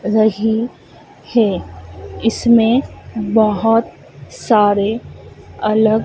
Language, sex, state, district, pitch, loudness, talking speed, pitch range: Hindi, female, Madhya Pradesh, Dhar, 220 Hz, -16 LUFS, 60 wpm, 205-225 Hz